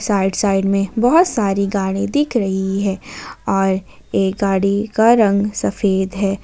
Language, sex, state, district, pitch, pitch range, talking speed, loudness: Hindi, female, Jharkhand, Ranchi, 200 Hz, 195-215 Hz, 150 wpm, -17 LUFS